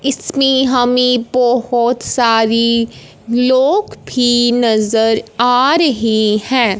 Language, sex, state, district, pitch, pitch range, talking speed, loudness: Hindi, female, Punjab, Fazilka, 245 Hz, 230-255 Hz, 90 wpm, -13 LUFS